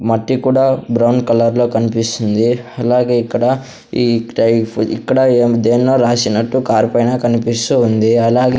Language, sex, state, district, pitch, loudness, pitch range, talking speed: Telugu, male, Andhra Pradesh, Sri Satya Sai, 120 Hz, -14 LUFS, 115-125 Hz, 140 wpm